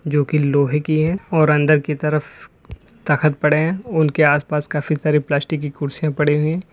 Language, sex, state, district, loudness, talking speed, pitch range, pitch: Hindi, male, Uttar Pradesh, Lalitpur, -18 LUFS, 195 wpm, 150-155 Hz, 150 Hz